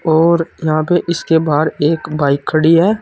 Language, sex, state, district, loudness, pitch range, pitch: Hindi, male, Uttar Pradesh, Saharanpur, -14 LUFS, 155-170 Hz, 160 Hz